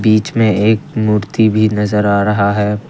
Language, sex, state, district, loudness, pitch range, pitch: Hindi, male, Assam, Kamrup Metropolitan, -14 LUFS, 105-110 Hz, 105 Hz